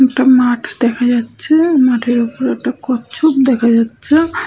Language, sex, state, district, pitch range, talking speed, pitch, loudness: Bengali, female, West Bengal, Purulia, 240-275 Hz, 145 wpm, 250 Hz, -13 LUFS